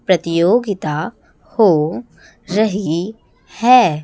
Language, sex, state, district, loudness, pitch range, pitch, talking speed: Hindi, female, Chhattisgarh, Raipur, -16 LUFS, 165-220 Hz, 190 Hz, 60 wpm